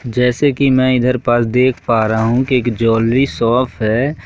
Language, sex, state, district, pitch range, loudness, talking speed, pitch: Hindi, male, Madhya Pradesh, Katni, 115-130 Hz, -14 LUFS, 195 wpm, 125 Hz